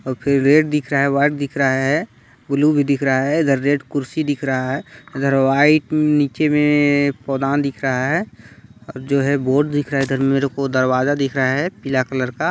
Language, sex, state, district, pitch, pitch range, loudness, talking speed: Hindi, male, Chhattisgarh, Balrampur, 140 Hz, 135-145 Hz, -18 LUFS, 215 wpm